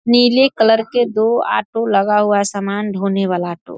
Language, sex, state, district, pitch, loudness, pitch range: Hindi, female, Bihar, Saharsa, 210 Hz, -15 LUFS, 200-235 Hz